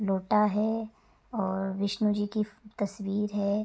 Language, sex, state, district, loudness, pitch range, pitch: Hindi, female, Uttar Pradesh, Gorakhpur, -30 LUFS, 200-215 Hz, 210 Hz